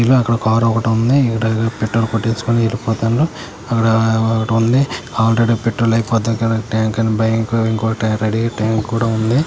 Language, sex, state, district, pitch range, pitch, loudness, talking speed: Telugu, male, Andhra Pradesh, Krishna, 110-115 Hz, 115 Hz, -16 LUFS, 115 wpm